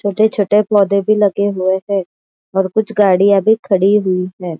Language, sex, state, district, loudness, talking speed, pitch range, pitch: Hindi, female, Maharashtra, Aurangabad, -14 LUFS, 185 wpm, 190-210 Hz, 200 Hz